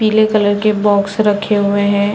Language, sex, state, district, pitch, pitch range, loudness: Hindi, female, Chhattisgarh, Bilaspur, 205 Hz, 205-215 Hz, -14 LUFS